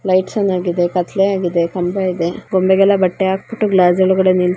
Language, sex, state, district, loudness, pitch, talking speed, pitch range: Kannada, female, Karnataka, Chamarajanagar, -15 LUFS, 185 Hz, 185 wpm, 180-195 Hz